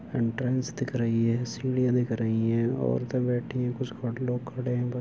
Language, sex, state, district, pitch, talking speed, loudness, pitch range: Hindi, male, Uttar Pradesh, Muzaffarnagar, 125 Hz, 205 wpm, -28 LUFS, 115-125 Hz